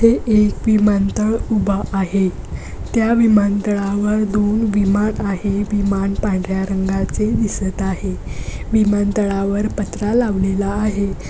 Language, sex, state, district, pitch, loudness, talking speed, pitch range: Marathi, female, Maharashtra, Pune, 205 Hz, -18 LUFS, 100 wpm, 195-215 Hz